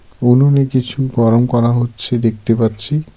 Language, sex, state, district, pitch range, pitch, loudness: Bengali, male, West Bengal, Darjeeling, 115-130 Hz, 120 Hz, -14 LUFS